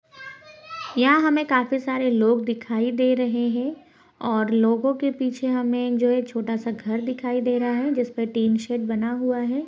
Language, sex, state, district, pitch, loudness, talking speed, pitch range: Hindi, female, Uttar Pradesh, Budaun, 245 Hz, -23 LUFS, 180 wpm, 230-265 Hz